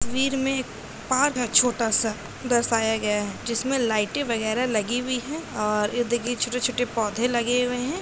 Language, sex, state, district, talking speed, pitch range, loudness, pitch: Hindi, female, Bihar, East Champaran, 155 wpm, 220-255 Hz, -24 LUFS, 245 Hz